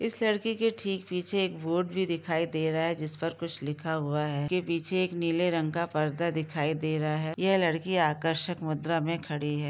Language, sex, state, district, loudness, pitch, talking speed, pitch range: Hindi, female, Jharkhand, Jamtara, -29 LUFS, 165 Hz, 220 wpm, 155-180 Hz